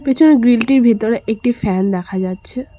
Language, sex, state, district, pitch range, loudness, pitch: Bengali, female, West Bengal, Cooch Behar, 195-255 Hz, -14 LUFS, 235 Hz